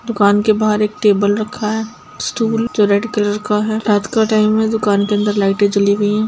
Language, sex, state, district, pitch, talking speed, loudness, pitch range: Hindi, female, Bihar, Sitamarhi, 210 Hz, 230 wpm, -15 LUFS, 205-215 Hz